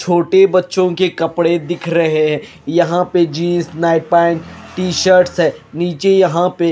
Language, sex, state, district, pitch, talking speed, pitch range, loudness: Hindi, male, Himachal Pradesh, Shimla, 175 Hz, 150 wpm, 170-180 Hz, -14 LUFS